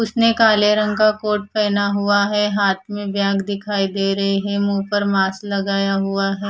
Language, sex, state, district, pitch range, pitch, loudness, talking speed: Hindi, female, Odisha, Khordha, 195-210 Hz, 200 Hz, -18 LUFS, 195 wpm